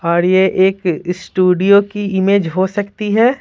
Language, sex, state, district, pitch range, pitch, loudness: Hindi, female, Bihar, Patna, 185-205 Hz, 190 Hz, -14 LUFS